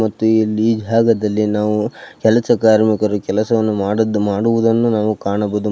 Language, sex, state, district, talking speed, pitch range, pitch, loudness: Kannada, male, Karnataka, Belgaum, 105 wpm, 105-115 Hz, 110 Hz, -16 LUFS